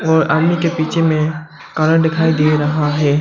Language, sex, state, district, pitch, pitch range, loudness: Hindi, male, Arunachal Pradesh, Lower Dibang Valley, 160 Hz, 155-165 Hz, -15 LUFS